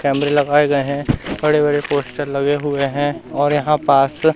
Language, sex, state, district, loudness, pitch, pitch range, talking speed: Hindi, male, Madhya Pradesh, Katni, -17 LUFS, 145 Hz, 140-145 Hz, 180 wpm